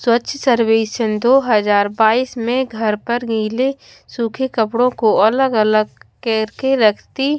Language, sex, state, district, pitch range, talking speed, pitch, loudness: Hindi, female, Odisha, Khordha, 220-255 Hz, 130 wpm, 230 Hz, -16 LUFS